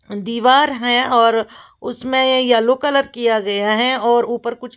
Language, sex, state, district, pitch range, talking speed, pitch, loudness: Hindi, female, Uttar Pradesh, Lalitpur, 230-255 Hz, 165 wpm, 240 Hz, -16 LUFS